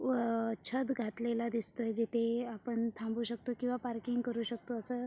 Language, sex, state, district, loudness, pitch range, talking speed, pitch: Marathi, female, Maharashtra, Sindhudurg, -36 LUFS, 230-245 Hz, 165 wpm, 235 Hz